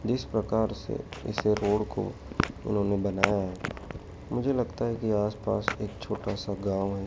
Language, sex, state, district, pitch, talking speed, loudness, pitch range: Hindi, male, Madhya Pradesh, Dhar, 105 Hz, 150 wpm, -30 LUFS, 100-110 Hz